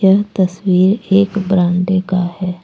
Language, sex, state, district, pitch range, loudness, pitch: Hindi, female, Jharkhand, Deoghar, 180-195 Hz, -15 LUFS, 185 Hz